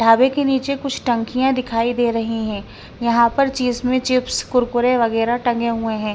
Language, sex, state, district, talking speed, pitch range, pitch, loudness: Hindi, female, Himachal Pradesh, Shimla, 185 wpm, 230-255 Hz, 240 Hz, -19 LUFS